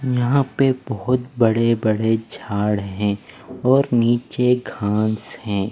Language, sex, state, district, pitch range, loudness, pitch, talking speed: Hindi, male, Punjab, Fazilka, 105-125 Hz, -20 LUFS, 115 Hz, 115 wpm